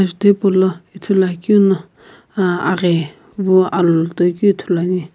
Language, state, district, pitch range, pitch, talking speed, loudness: Sumi, Nagaland, Kohima, 175-195 Hz, 185 Hz, 105 wpm, -15 LUFS